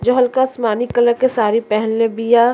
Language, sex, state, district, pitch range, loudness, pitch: Bhojpuri, female, Uttar Pradesh, Deoria, 225-250 Hz, -16 LUFS, 240 Hz